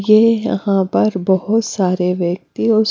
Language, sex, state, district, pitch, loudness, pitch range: Hindi, female, Punjab, Fazilka, 195 Hz, -16 LUFS, 185-220 Hz